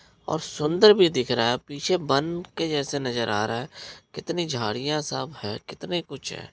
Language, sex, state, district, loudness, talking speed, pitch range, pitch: Hindi, male, Bihar, Araria, -25 LUFS, 195 wpm, 125-170 Hz, 145 Hz